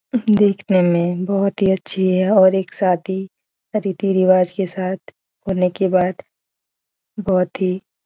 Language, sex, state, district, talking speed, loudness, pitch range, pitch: Hindi, female, Bihar, Jahanabad, 150 wpm, -18 LUFS, 185-195 Hz, 190 Hz